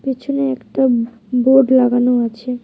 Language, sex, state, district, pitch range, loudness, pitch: Bengali, female, West Bengal, Alipurduar, 245-265 Hz, -15 LUFS, 250 Hz